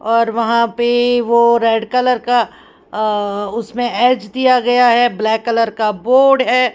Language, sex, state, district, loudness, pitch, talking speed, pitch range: Hindi, female, Haryana, Jhajjar, -14 LUFS, 235 Hz, 150 wpm, 225-245 Hz